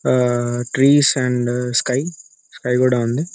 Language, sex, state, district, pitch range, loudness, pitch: Telugu, male, Telangana, Nalgonda, 120-135 Hz, -17 LUFS, 125 Hz